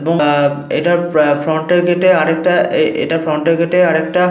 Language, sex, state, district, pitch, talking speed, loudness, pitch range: Bengali, male, Jharkhand, Sahebganj, 165 Hz, 210 wpm, -14 LUFS, 155-175 Hz